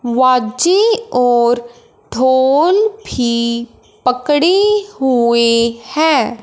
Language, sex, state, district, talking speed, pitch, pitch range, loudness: Hindi, male, Punjab, Fazilka, 65 wpm, 255 Hz, 235-320 Hz, -13 LUFS